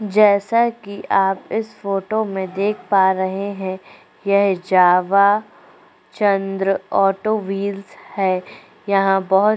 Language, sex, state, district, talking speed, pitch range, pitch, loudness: Hindi, female, Chhattisgarh, Korba, 120 wpm, 190-205 Hz, 195 Hz, -18 LUFS